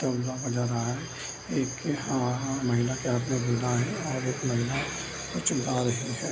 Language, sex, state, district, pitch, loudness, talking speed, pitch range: Hindi, male, Bihar, Bhagalpur, 125 Hz, -29 LUFS, 170 wpm, 120-135 Hz